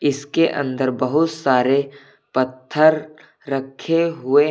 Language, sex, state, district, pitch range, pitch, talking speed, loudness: Hindi, male, Uttar Pradesh, Lucknow, 130-155 Hz, 140 Hz, 105 wpm, -19 LUFS